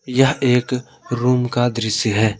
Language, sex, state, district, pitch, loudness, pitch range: Hindi, male, Jharkhand, Garhwa, 125 Hz, -18 LUFS, 115-125 Hz